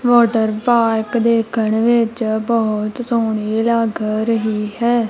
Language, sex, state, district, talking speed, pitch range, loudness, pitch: Punjabi, female, Punjab, Kapurthala, 105 wpm, 220-235 Hz, -17 LUFS, 225 Hz